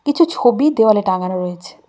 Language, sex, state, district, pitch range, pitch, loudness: Bengali, female, West Bengal, Cooch Behar, 185-290 Hz, 220 Hz, -15 LUFS